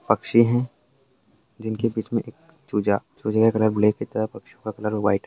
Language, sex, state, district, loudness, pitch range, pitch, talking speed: Hindi, male, Bihar, Jamui, -23 LUFS, 105-115 Hz, 110 Hz, 205 wpm